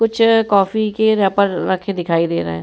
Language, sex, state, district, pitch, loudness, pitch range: Hindi, female, Uttar Pradesh, Muzaffarnagar, 200 Hz, -16 LUFS, 175-220 Hz